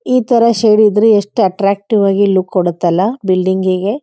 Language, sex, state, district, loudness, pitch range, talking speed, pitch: Kannada, female, Karnataka, Dharwad, -12 LUFS, 185-220 Hz, 165 wpm, 200 Hz